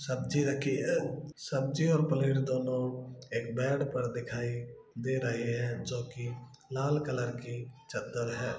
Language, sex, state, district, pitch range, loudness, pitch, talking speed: Hindi, male, Bihar, Gaya, 120-135 Hz, -33 LUFS, 125 Hz, 145 wpm